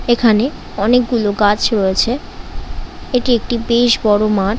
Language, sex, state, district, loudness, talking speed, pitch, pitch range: Bengali, female, West Bengal, Dakshin Dinajpur, -15 LUFS, 130 wpm, 230 Hz, 210-245 Hz